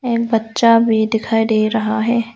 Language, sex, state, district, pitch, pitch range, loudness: Hindi, female, Arunachal Pradesh, Lower Dibang Valley, 225 Hz, 220-230 Hz, -16 LUFS